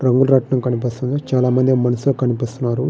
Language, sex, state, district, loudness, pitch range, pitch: Telugu, male, Andhra Pradesh, Srikakulam, -18 LUFS, 125-130 Hz, 125 Hz